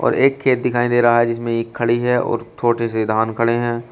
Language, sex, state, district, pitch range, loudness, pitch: Hindi, male, Uttar Pradesh, Shamli, 115-120 Hz, -18 LUFS, 120 Hz